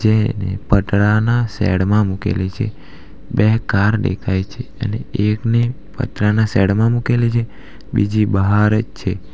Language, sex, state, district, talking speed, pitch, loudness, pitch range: Gujarati, male, Gujarat, Valsad, 140 wpm, 105 Hz, -17 LUFS, 100-115 Hz